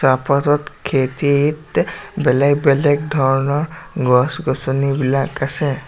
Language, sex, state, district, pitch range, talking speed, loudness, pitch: Assamese, male, Assam, Sonitpur, 135-150 Hz, 70 wpm, -17 LUFS, 140 Hz